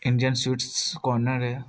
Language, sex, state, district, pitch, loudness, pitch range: Hindi, male, Bihar, Jahanabad, 130 Hz, -25 LUFS, 125-130 Hz